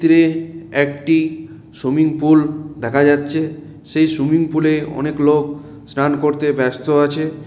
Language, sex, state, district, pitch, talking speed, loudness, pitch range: Bengali, male, West Bengal, Malda, 150 Hz, 120 wpm, -17 LUFS, 145-155 Hz